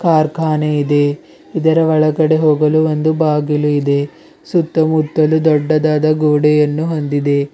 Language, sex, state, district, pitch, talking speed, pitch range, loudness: Kannada, male, Karnataka, Bidar, 155 Hz, 95 wpm, 150-160 Hz, -14 LUFS